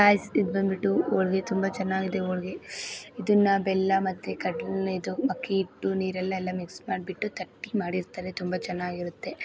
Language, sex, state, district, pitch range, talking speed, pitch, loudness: Kannada, female, Karnataka, Belgaum, 185-195 Hz, 125 wpm, 190 Hz, -28 LUFS